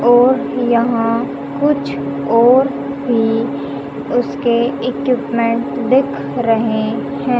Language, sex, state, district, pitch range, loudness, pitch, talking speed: Hindi, female, Haryana, Jhajjar, 225-255 Hz, -16 LUFS, 240 Hz, 80 wpm